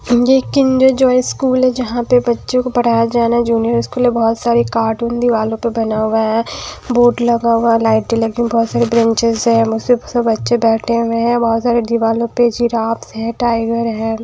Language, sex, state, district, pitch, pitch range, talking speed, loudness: Hindi, female, Haryana, Jhajjar, 235 Hz, 230-240 Hz, 205 wpm, -14 LUFS